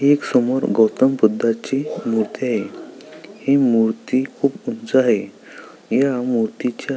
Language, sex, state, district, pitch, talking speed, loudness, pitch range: Marathi, male, Maharashtra, Sindhudurg, 125 Hz, 120 wpm, -19 LUFS, 115-135 Hz